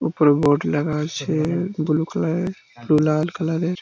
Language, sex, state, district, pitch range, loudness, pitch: Bengali, male, West Bengal, Purulia, 150-165 Hz, -21 LUFS, 155 Hz